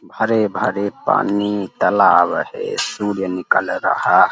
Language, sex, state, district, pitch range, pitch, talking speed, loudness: Hindi, male, Uttar Pradesh, Deoria, 100-110 Hz, 105 Hz, 110 wpm, -17 LUFS